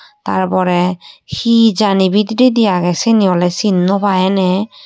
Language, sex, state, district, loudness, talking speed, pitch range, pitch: Chakma, female, Tripura, Unakoti, -13 LUFS, 150 wpm, 180-220 Hz, 190 Hz